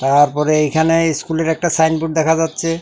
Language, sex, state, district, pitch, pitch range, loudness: Bengali, male, Tripura, South Tripura, 160 Hz, 155-165 Hz, -16 LUFS